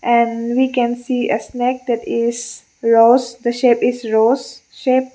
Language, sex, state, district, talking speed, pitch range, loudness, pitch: English, female, Mizoram, Aizawl, 175 wpm, 235-250 Hz, -17 LUFS, 240 Hz